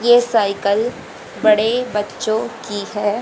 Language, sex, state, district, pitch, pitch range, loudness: Hindi, female, Haryana, Jhajjar, 215 Hz, 205-235 Hz, -18 LUFS